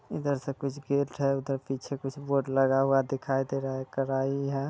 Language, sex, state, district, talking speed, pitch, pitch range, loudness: Hindi, male, Bihar, Muzaffarpur, 215 wpm, 135 Hz, 135-140 Hz, -29 LUFS